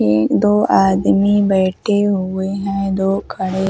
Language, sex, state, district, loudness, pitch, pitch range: Hindi, female, Uttar Pradesh, Hamirpur, -16 LUFS, 195 Hz, 185-200 Hz